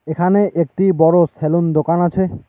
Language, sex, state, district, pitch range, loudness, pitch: Bengali, male, West Bengal, Alipurduar, 160-185 Hz, -15 LUFS, 170 Hz